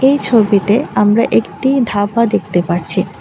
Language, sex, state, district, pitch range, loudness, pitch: Bengali, female, Tripura, West Tripura, 200-240 Hz, -14 LUFS, 215 Hz